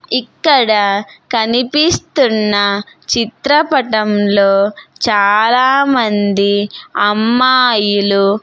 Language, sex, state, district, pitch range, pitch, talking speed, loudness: Telugu, female, Andhra Pradesh, Sri Satya Sai, 205-255 Hz, 220 Hz, 45 wpm, -13 LUFS